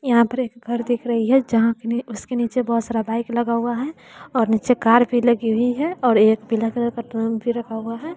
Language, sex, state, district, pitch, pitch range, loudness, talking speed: Hindi, female, Bihar, West Champaran, 235 Hz, 230-245 Hz, -20 LUFS, 240 wpm